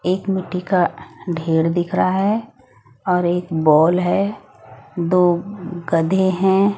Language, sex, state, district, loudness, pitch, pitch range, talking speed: Hindi, female, Odisha, Nuapada, -18 LUFS, 180 Hz, 165-190 Hz, 125 wpm